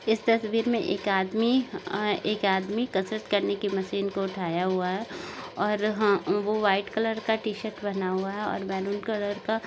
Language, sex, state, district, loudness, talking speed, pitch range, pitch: Hindi, female, Maharashtra, Nagpur, -27 LUFS, 190 wpm, 195-220 Hz, 205 Hz